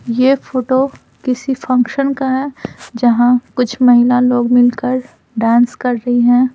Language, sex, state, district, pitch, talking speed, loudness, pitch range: Hindi, female, Bihar, Patna, 250 Hz, 135 wpm, -14 LUFS, 240-260 Hz